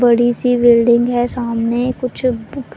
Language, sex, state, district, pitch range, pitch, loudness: Hindi, female, Punjab, Pathankot, 235-250 Hz, 240 Hz, -15 LUFS